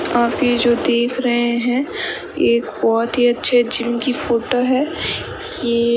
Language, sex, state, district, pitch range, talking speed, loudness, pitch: Hindi, female, Rajasthan, Bikaner, 235-250 Hz, 140 wpm, -18 LUFS, 240 Hz